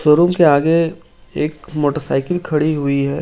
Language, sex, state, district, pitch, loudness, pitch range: Hindi, male, Jharkhand, Ranchi, 155 Hz, -16 LUFS, 145-165 Hz